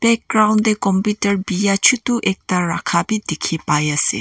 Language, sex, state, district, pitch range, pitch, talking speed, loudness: Nagamese, female, Nagaland, Kohima, 175-215 Hz, 200 Hz, 155 wpm, -17 LUFS